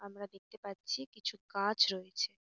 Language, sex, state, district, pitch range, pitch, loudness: Bengali, female, West Bengal, North 24 Parganas, 195-210 Hz, 200 Hz, -35 LUFS